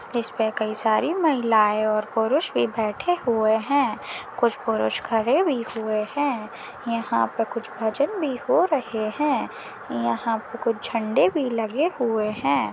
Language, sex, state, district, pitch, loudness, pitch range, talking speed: Hindi, female, Maharashtra, Dhule, 230 Hz, -23 LUFS, 220-275 Hz, 150 wpm